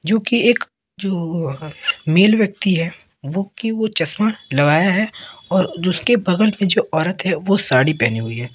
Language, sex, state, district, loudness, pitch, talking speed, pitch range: Hindi, male, Madhya Pradesh, Katni, -18 LUFS, 185 Hz, 180 wpm, 160-210 Hz